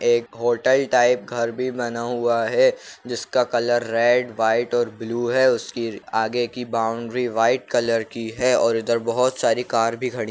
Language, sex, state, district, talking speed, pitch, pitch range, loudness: Kumaoni, male, Uttarakhand, Uttarkashi, 175 wpm, 120 Hz, 115-125 Hz, -21 LUFS